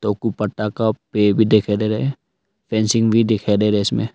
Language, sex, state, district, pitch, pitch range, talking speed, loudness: Hindi, male, Arunachal Pradesh, Longding, 110 Hz, 105-110 Hz, 230 wpm, -18 LUFS